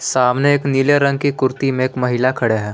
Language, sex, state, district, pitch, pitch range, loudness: Hindi, male, Jharkhand, Palamu, 130 Hz, 125-140 Hz, -16 LUFS